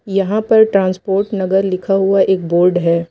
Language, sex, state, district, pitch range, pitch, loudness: Hindi, female, Uttar Pradesh, Lucknow, 185-195 Hz, 195 Hz, -14 LUFS